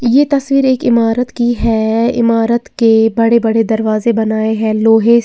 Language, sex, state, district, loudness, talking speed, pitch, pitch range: Hindi, female, Uttar Pradesh, Lalitpur, -12 LUFS, 160 wpm, 230 Hz, 225-240 Hz